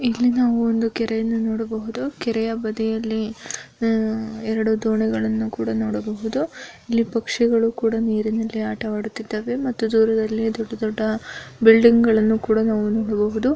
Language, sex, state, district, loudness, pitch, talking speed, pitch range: Kannada, female, Karnataka, Bellary, -21 LUFS, 225 Hz, 110 wpm, 220-230 Hz